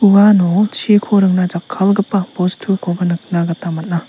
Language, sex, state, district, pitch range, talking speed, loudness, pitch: Garo, male, Meghalaya, South Garo Hills, 175-205 Hz, 115 wpm, -14 LUFS, 190 Hz